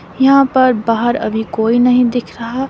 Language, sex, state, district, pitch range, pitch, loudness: Hindi, female, Himachal Pradesh, Shimla, 230-260 Hz, 245 Hz, -13 LUFS